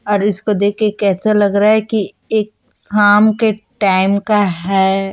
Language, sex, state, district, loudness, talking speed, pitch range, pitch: Hindi, female, Chhattisgarh, Raipur, -14 LUFS, 165 wpm, 195-215 Hz, 205 Hz